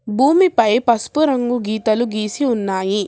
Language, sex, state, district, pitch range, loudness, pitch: Telugu, female, Telangana, Hyderabad, 215-255 Hz, -17 LUFS, 230 Hz